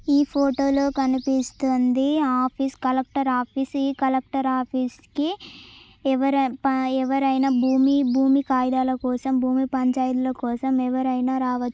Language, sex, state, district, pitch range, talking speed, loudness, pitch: Telugu, female, Telangana, Karimnagar, 255-275 Hz, 105 wpm, -22 LUFS, 265 Hz